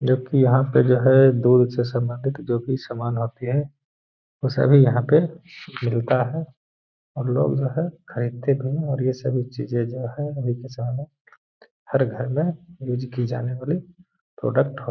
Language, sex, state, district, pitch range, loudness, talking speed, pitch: Hindi, male, Bihar, Gaya, 120-140 Hz, -22 LUFS, 180 wpm, 130 Hz